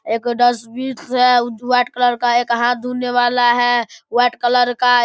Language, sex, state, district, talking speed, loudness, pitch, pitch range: Maithili, male, Bihar, Darbhanga, 180 wpm, -16 LUFS, 245 Hz, 240-245 Hz